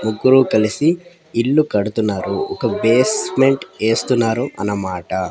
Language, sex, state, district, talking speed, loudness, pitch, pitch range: Telugu, female, Andhra Pradesh, Sri Satya Sai, 90 wpm, -17 LUFS, 115 Hz, 105-140 Hz